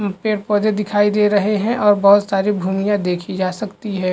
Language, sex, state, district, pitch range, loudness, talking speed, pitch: Hindi, male, Chhattisgarh, Bastar, 195-210 Hz, -17 LUFS, 190 wpm, 205 Hz